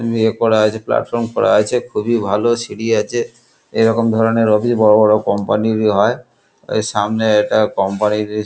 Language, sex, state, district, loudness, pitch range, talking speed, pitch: Bengali, male, West Bengal, Kolkata, -15 LUFS, 105-115 Hz, 165 wpm, 110 Hz